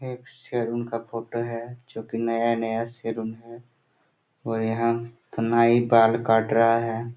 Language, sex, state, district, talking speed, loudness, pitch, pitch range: Hindi, male, Jharkhand, Sahebganj, 150 wpm, -24 LUFS, 115 Hz, 115-120 Hz